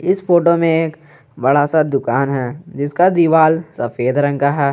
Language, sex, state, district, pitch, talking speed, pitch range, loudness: Hindi, male, Jharkhand, Garhwa, 150 Hz, 175 wpm, 140-165 Hz, -15 LUFS